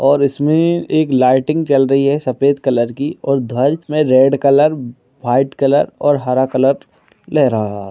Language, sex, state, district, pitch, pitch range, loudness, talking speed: Hindi, male, Bihar, Bhagalpur, 135 Hz, 130-145 Hz, -14 LUFS, 175 wpm